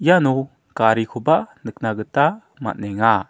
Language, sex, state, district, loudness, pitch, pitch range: Garo, male, Meghalaya, South Garo Hills, -20 LUFS, 115 Hz, 110-140 Hz